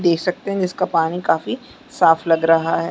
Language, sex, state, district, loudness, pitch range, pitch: Hindi, female, Chhattisgarh, Sarguja, -18 LUFS, 165-185 Hz, 165 Hz